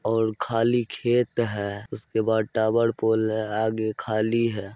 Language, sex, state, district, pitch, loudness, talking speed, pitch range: Maithili, male, Bihar, Madhepura, 110 Hz, -24 LUFS, 150 wpm, 110-115 Hz